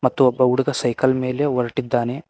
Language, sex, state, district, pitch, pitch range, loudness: Kannada, male, Karnataka, Koppal, 130 Hz, 125-135 Hz, -20 LUFS